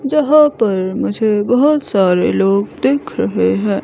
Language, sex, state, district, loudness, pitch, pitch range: Hindi, female, Himachal Pradesh, Shimla, -14 LUFS, 215 Hz, 195-285 Hz